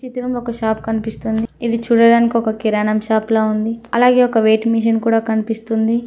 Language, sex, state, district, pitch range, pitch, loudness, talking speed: Telugu, female, Telangana, Mahabubabad, 220-235 Hz, 225 Hz, -16 LUFS, 170 wpm